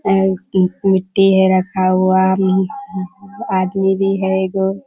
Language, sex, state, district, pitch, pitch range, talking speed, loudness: Hindi, female, Bihar, Kishanganj, 190 Hz, 190-195 Hz, 125 wpm, -15 LUFS